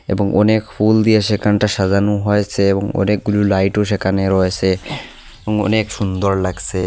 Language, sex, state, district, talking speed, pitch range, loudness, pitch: Bengali, male, Assam, Hailakandi, 140 wpm, 95-105 Hz, -16 LUFS, 105 Hz